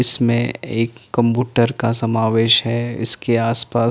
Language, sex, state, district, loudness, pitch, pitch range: Hindi, male, Chandigarh, Chandigarh, -17 LUFS, 115 Hz, 115-120 Hz